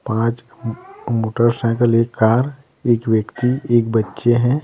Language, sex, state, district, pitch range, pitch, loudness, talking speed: Hindi, male, Bihar, Patna, 115-120 Hz, 115 Hz, -18 LUFS, 130 wpm